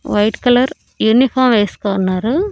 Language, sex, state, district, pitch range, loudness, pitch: Telugu, female, Andhra Pradesh, Annamaya, 205-255 Hz, -15 LUFS, 230 Hz